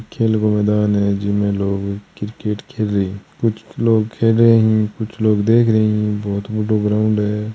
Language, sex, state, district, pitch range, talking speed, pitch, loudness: Hindi, male, Rajasthan, Churu, 105-110 Hz, 190 wpm, 105 Hz, -17 LUFS